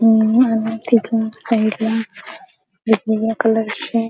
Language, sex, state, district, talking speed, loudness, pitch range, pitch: Marathi, female, Maharashtra, Chandrapur, 75 wpm, -17 LUFS, 220-230 Hz, 225 Hz